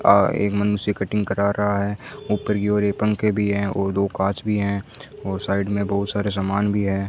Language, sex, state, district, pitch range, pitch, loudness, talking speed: Hindi, male, Rajasthan, Bikaner, 100-105 Hz, 100 Hz, -22 LUFS, 230 wpm